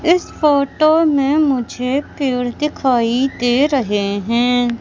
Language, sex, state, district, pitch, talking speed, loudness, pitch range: Hindi, female, Madhya Pradesh, Katni, 265 Hz, 110 wpm, -16 LUFS, 245-295 Hz